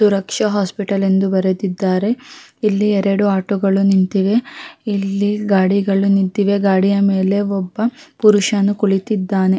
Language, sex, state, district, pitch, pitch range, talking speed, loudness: Kannada, female, Karnataka, Raichur, 200 Hz, 195-210 Hz, 100 wpm, -16 LUFS